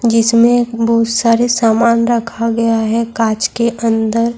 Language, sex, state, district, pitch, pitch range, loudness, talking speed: Urdu, female, Bihar, Saharsa, 230 Hz, 230-235 Hz, -13 LUFS, 150 wpm